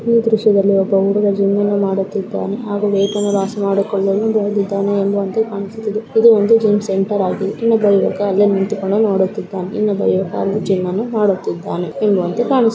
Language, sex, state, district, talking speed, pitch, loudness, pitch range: Kannada, female, Karnataka, Dakshina Kannada, 135 wpm, 205 Hz, -16 LUFS, 195-215 Hz